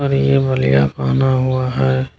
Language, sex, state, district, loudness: Hindi, male, Bihar, Kishanganj, -16 LUFS